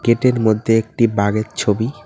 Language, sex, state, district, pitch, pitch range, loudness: Bengali, male, West Bengal, Cooch Behar, 110 Hz, 105-115 Hz, -17 LUFS